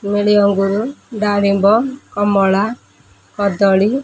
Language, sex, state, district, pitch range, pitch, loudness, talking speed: Odia, female, Odisha, Khordha, 200-215 Hz, 205 Hz, -15 LUFS, 75 wpm